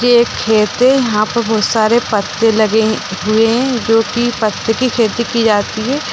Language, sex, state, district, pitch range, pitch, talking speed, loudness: Hindi, female, Bihar, Gopalganj, 215-240 Hz, 225 Hz, 205 wpm, -13 LUFS